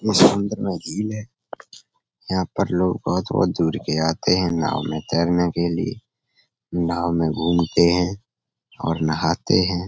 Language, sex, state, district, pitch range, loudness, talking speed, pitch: Hindi, male, Uttar Pradesh, Etah, 80-90 Hz, -21 LUFS, 145 wpm, 85 Hz